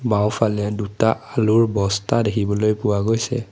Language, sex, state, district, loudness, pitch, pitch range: Assamese, male, Assam, Sonitpur, -20 LUFS, 105 Hz, 105-115 Hz